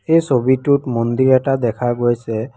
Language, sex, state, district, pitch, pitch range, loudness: Assamese, female, Assam, Kamrup Metropolitan, 125 Hz, 120-135 Hz, -16 LUFS